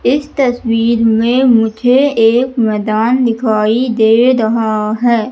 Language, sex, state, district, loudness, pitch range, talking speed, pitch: Hindi, female, Madhya Pradesh, Katni, -12 LUFS, 220-250 Hz, 115 wpm, 230 Hz